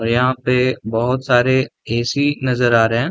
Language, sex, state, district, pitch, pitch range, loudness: Hindi, male, Bihar, Darbhanga, 125 Hz, 115-130 Hz, -17 LUFS